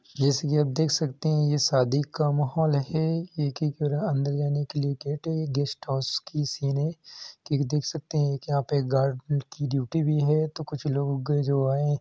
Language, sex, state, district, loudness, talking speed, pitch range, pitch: Hindi, male, Uttar Pradesh, Hamirpur, -26 LUFS, 210 wpm, 140-150 Hz, 145 Hz